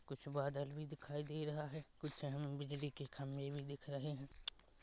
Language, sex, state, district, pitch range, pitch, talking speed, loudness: Hindi, female, Chhattisgarh, Rajnandgaon, 140-150 Hz, 145 Hz, 225 wpm, -46 LUFS